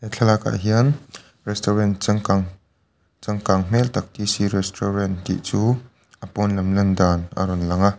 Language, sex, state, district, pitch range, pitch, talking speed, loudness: Mizo, male, Mizoram, Aizawl, 95-110 Hz, 100 Hz, 150 wpm, -21 LUFS